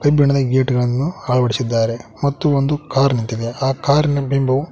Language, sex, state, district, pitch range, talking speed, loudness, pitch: Kannada, male, Karnataka, Koppal, 125-140 Hz, 115 wpm, -18 LUFS, 135 Hz